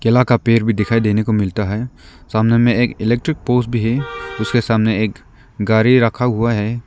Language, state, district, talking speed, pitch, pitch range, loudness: Hindi, Arunachal Pradesh, Lower Dibang Valley, 200 wpm, 115 Hz, 110-120 Hz, -16 LUFS